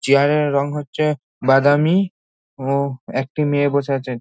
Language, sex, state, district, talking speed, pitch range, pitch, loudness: Bengali, male, West Bengal, North 24 Parganas, 140 wpm, 135-150 Hz, 140 Hz, -19 LUFS